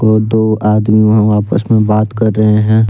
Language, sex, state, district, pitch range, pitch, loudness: Hindi, male, Jharkhand, Deoghar, 105-110 Hz, 110 Hz, -11 LUFS